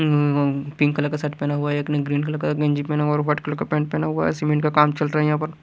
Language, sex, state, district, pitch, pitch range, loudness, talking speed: Hindi, male, Haryana, Rohtak, 150 Hz, 145-150 Hz, -22 LUFS, 340 wpm